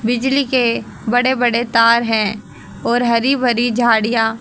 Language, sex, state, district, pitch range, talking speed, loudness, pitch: Hindi, female, Haryana, Jhajjar, 225-245 Hz, 135 wpm, -15 LUFS, 235 Hz